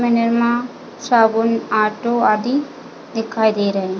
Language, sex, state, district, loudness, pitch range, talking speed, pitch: Hindi, female, Chhattisgarh, Bilaspur, -17 LUFS, 220-240 Hz, 120 wpm, 230 Hz